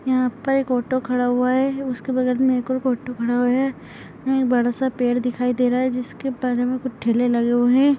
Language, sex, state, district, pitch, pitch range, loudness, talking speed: Hindi, female, Uttar Pradesh, Budaun, 250 Hz, 245-260 Hz, -21 LUFS, 225 wpm